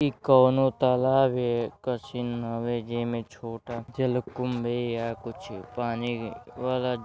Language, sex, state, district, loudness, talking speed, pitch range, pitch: Hindi, male, Uttar Pradesh, Deoria, -27 LUFS, 145 wpm, 115-125 Hz, 120 Hz